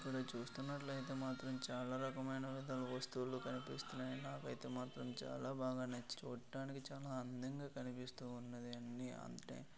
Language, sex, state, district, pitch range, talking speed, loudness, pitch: Telugu, male, Andhra Pradesh, Krishna, 125-135 Hz, 110 wpm, -47 LUFS, 130 Hz